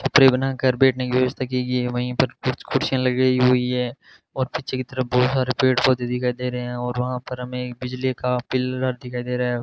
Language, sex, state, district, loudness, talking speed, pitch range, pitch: Hindi, male, Rajasthan, Bikaner, -22 LUFS, 235 wpm, 125-130 Hz, 125 Hz